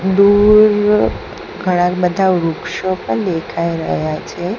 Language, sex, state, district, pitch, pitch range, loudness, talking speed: Gujarati, female, Gujarat, Gandhinagar, 180 Hz, 170-200 Hz, -15 LUFS, 105 wpm